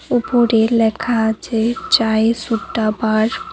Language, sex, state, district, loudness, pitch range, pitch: Bengali, female, West Bengal, Cooch Behar, -17 LUFS, 220-240 Hz, 225 Hz